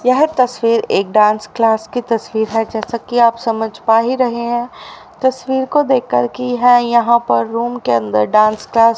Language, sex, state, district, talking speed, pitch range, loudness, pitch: Hindi, female, Haryana, Rohtak, 195 wpm, 220-245 Hz, -15 LUFS, 235 Hz